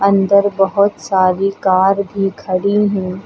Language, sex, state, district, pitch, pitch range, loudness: Hindi, female, Uttar Pradesh, Lucknow, 195 Hz, 190-200 Hz, -15 LUFS